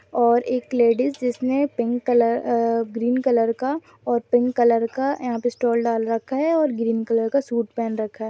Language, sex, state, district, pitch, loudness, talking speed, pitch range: Hindi, female, Rajasthan, Nagaur, 240 Hz, -21 LUFS, 210 wpm, 230-255 Hz